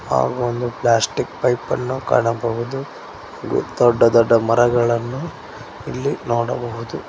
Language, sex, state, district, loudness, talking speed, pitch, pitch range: Kannada, male, Karnataka, Koppal, -19 LUFS, 95 wpm, 120 Hz, 115-120 Hz